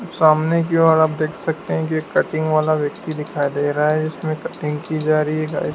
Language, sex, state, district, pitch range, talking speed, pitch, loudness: Hindi, male, Madhya Pradesh, Dhar, 150-160 Hz, 240 wpm, 155 Hz, -19 LUFS